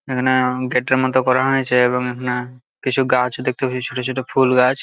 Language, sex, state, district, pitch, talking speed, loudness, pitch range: Bengali, male, West Bengal, Jalpaiguri, 125 Hz, 200 wpm, -18 LUFS, 125-130 Hz